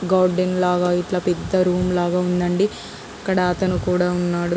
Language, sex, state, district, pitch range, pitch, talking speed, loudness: Telugu, female, Andhra Pradesh, Guntur, 180-185 Hz, 180 Hz, 145 wpm, -20 LUFS